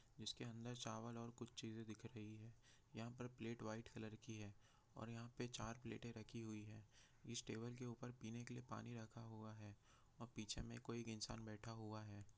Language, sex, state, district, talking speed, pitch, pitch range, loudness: Hindi, male, Bihar, Jahanabad, 190 wpm, 115 Hz, 110-120 Hz, -54 LUFS